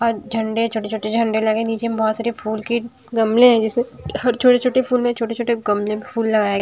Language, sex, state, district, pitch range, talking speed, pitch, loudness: Hindi, female, Odisha, Sambalpur, 220-240 Hz, 225 wpm, 230 Hz, -19 LUFS